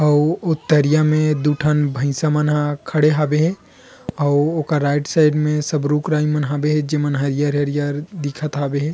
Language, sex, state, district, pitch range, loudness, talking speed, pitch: Chhattisgarhi, male, Chhattisgarh, Rajnandgaon, 145-155 Hz, -18 LUFS, 180 wpm, 150 Hz